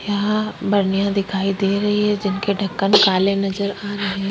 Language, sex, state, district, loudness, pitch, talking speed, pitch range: Hindi, female, Chhattisgarh, Kabirdham, -19 LUFS, 200 Hz, 165 wpm, 195-205 Hz